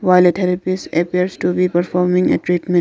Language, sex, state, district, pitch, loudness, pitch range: English, female, Arunachal Pradesh, Lower Dibang Valley, 180 Hz, -17 LUFS, 175-180 Hz